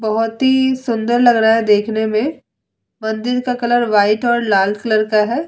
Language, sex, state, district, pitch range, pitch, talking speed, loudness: Hindi, female, Bihar, Vaishali, 215-240 Hz, 225 Hz, 195 wpm, -15 LUFS